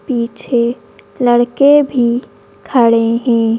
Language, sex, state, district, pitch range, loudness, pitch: Hindi, female, Madhya Pradesh, Bhopal, 235-250 Hz, -13 LUFS, 240 Hz